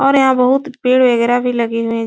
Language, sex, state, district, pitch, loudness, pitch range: Hindi, female, Uttar Pradesh, Etah, 250 Hz, -14 LUFS, 235-265 Hz